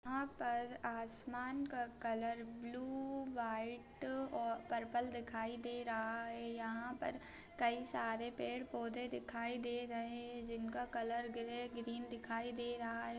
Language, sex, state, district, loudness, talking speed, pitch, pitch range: Hindi, female, Bihar, Bhagalpur, -44 LUFS, 135 wpm, 235 Hz, 230-245 Hz